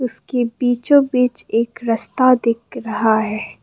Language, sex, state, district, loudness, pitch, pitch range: Hindi, female, Assam, Kamrup Metropolitan, -18 LUFS, 240 Hz, 225-250 Hz